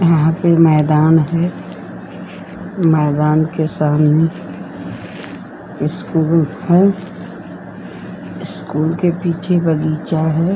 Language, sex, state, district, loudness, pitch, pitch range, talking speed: Hindi, female, Uttar Pradesh, Jyotiba Phule Nagar, -15 LUFS, 160 Hz, 155-170 Hz, 80 wpm